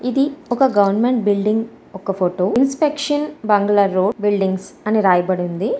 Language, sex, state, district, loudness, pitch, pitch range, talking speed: Telugu, female, Andhra Pradesh, Srikakulam, -18 LUFS, 210 Hz, 190-255 Hz, 135 wpm